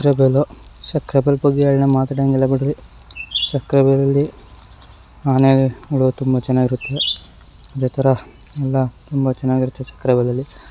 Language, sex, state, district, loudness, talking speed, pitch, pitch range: Kannada, male, Karnataka, Shimoga, -18 LUFS, 105 wpm, 135 Hz, 125-140 Hz